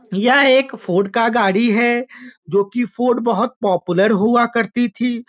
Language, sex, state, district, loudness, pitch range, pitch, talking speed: Hindi, male, Bihar, Muzaffarpur, -16 LUFS, 205-245 Hz, 235 Hz, 160 wpm